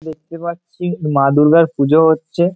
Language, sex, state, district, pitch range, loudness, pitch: Bengali, male, West Bengal, Malda, 155-170 Hz, -14 LUFS, 160 Hz